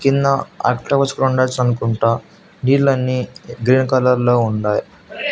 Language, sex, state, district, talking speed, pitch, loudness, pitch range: Telugu, male, Andhra Pradesh, Annamaya, 80 wpm, 130 Hz, -17 LUFS, 120-135 Hz